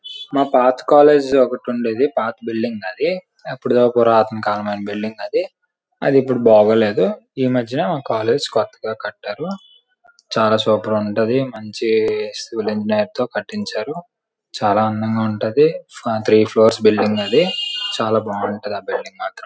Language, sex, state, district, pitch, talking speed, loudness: Telugu, male, Andhra Pradesh, Srikakulam, 120 Hz, 125 wpm, -18 LUFS